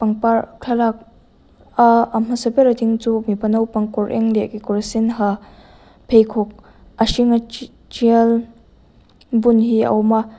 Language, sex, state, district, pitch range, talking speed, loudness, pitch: Mizo, female, Mizoram, Aizawl, 220-235 Hz, 150 wpm, -17 LUFS, 225 Hz